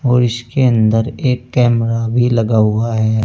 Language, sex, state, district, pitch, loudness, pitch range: Hindi, male, Uttar Pradesh, Saharanpur, 115 Hz, -15 LUFS, 115-125 Hz